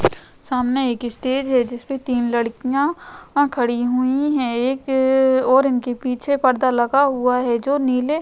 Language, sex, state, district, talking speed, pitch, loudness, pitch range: Hindi, female, Uttar Pradesh, Jyotiba Phule Nagar, 160 wpm, 255 Hz, -19 LUFS, 245-270 Hz